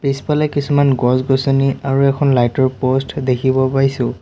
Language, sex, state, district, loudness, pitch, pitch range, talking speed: Assamese, male, Assam, Sonitpur, -16 LUFS, 135 Hz, 130-140 Hz, 140 wpm